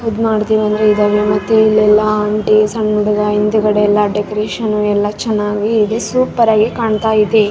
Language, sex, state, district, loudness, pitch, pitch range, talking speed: Kannada, female, Karnataka, Raichur, -13 LUFS, 215 Hz, 210-220 Hz, 145 wpm